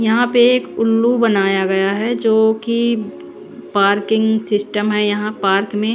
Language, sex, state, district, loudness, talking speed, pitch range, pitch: Hindi, female, Chandigarh, Chandigarh, -16 LUFS, 140 wpm, 205-230 Hz, 220 Hz